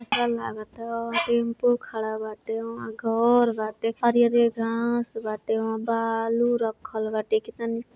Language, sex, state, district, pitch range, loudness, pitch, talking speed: Hindi, female, Uttar Pradesh, Gorakhpur, 220-235 Hz, -25 LUFS, 230 Hz, 145 wpm